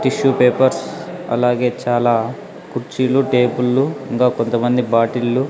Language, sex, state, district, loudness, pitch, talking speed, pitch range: Telugu, male, Andhra Pradesh, Sri Satya Sai, -17 LUFS, 125 Hz, 110 wpm, 120-135 Hz